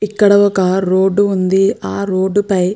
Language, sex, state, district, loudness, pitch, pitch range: Telugu, female, Andhra Pradesh, Chittoor, -14 LUFS, 195 Hz, 190-205 Hz